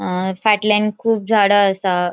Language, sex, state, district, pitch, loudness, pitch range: Konkani, female, Goa, North and South Goa, 205 Hz, -16 LUFS, 190-215 Hz